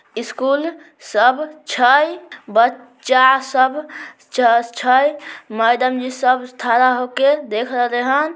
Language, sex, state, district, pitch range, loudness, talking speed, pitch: Maithili, male, Bihar, Samastipur, 245-290 Hz, -16 LUFS, 110 wpm, 255 Hz